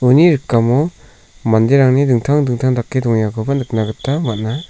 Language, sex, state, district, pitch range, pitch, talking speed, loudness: Garo, male, Meghalaya, South Garo Hills, 110-140 Hz, 125 Hz, 115 wpm, -15 LUFS